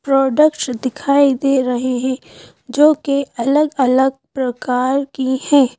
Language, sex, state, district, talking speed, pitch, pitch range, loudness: Hindi, female, Madhya Pradesh, Bhopal, 115 wpm, 265 Hz, 255-280 Hz, -16 LUFS